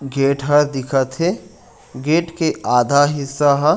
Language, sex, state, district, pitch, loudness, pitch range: Chhattisgarhi, male, Chhattisgarh, Raigarh, 145 Hz, -17 LUFS, 135-155 Hz